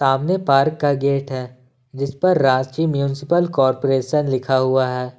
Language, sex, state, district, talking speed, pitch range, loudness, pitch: Hindi, male, Jharkhand, Ranchi, 150 wpm, 130-145 Hz, -19 LUFS, 135 Hz